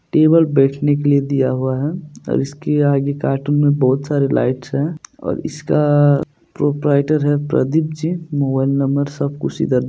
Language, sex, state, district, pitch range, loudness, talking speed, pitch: Hindi, male, Bihar, Supaul, 140-150 Hz, -17 LUFS, 160 wpm, 145 Hz